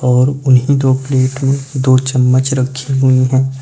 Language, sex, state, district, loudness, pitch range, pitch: Hindi, male, Uttar Pradesh, Lucknow, -13 LUFS, 130-135 Hz, 130 Hz